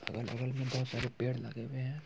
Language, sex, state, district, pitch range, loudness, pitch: Hindi, male, Bihar, Muzaffarpur, 120-130 Hz, -37 LUFS, 125 Hz